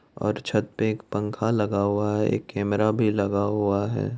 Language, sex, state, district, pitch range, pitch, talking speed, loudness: Hindi, male, Bihar, Madhepura, 100-110 Hz, 105 Hz, 200 wpm, -25 LUFS